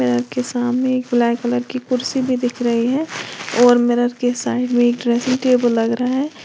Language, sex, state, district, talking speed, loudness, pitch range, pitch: Hindi, female, Uttar Pradesh, Lalitpur, 195 wpm, -18 LUFS, 240-255 Hz, 245 Hz